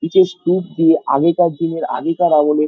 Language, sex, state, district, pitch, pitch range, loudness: Bengali, male, West Bengal, Dakshin Dinajpur, 165 Hz, 160-175 Hz, -16 LUFS